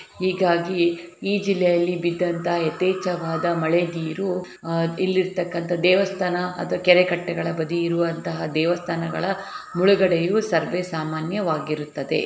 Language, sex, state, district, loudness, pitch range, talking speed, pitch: Kannada, female, Karnataka, Shimoga, -22 LUFS, 165-185 Hz, 90 wpm, 175 Hz